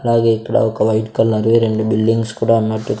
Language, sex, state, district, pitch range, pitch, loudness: Telugu, male, Andhra Pradesh, Sri Satya Sai, 110-115 Hz, 110 Hz, -16 LUFS